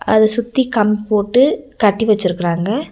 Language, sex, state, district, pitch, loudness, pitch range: Tamil, female, Tamil Nadu, Nilgiris, 215 Hz, -15 LUFS, 205-235 Hz